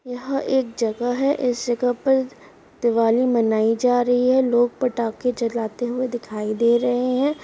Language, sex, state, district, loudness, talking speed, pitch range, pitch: Hindi, female, Uttar Pradesh, Muzaffarnagar, -21 LUFS, 170 wpm, 235-255 Hz, 245 Hz